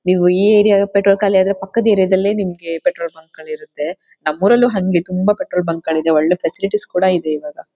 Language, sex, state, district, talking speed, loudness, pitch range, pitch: Kannada, female, Karnataka, Shimoga, 155 wpm, -16 LUFS, 175-210 Hz, 190 Hz